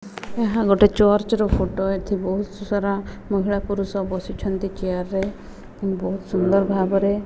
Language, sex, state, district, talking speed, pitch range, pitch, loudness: Odia, female, Odisha, Malkangiri, 140 wpm, 195-205 Hz, 200 Hz, -22 LUFS